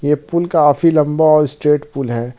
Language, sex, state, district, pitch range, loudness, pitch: Hindi, male, Jharkhand, Ranchi, 140-155 Hz, -14 LUFS, 150 Hz